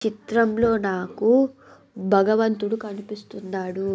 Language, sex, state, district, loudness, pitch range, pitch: Telugu, female, Andhra Pradesh, Krishna, -22 LUFS, 195-225 Hz, 215 Hz